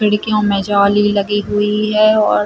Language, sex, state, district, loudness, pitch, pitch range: Hindi, female, Chhattisgarh, Rajnandgaon, -14 LUFS, 205 Hz, 200-210 Hz